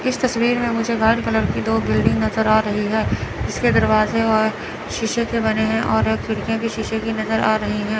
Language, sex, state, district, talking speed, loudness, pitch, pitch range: Hindi, female, Chandigarh, Chandigarh, 215 wpm, -19 LUFS, 220 Hz, 210-225 Hz